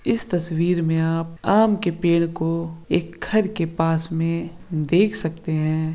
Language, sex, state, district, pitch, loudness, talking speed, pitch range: Hindi, male, Bihar, Saran, 165 Hz, -22 LUFS, 170 wpm, 165-175 Hz